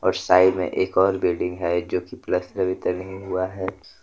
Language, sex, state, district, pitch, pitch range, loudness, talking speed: Hindi, male, Jharkhand, Deoghar, 95 Hz, 90-95 Hz, -23 LUFS, 225 wpm